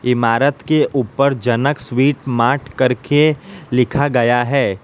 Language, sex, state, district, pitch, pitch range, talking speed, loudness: Hindi, male, Gujarat, Valsad, 135 Hz, 120-145 Hz, 125 wpm, -16 LUFS